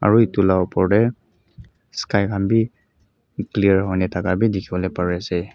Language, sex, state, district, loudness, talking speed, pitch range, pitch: Nagamese, male, Mizoram, Aizawl, -20 LUFS, 150 wpm, 95-110 Hz, 100 Hz